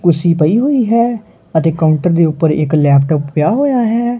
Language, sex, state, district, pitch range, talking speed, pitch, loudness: Punjabi, male, Punjab, Kapurthala, 155-235 Hz, 185 wpm, 170 Hz, -13 LUFS